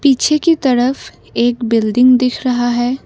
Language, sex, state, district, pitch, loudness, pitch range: Hindi, female, Assam, Kamrup Metropolitan, 250 Hz, -14 LUFS, 240-265 Hz